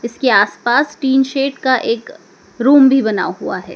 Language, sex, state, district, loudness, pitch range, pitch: Hindi, male, Madhya Pradesh, Dhar, -14 LUFS, 205-270 Hz, 250 Hz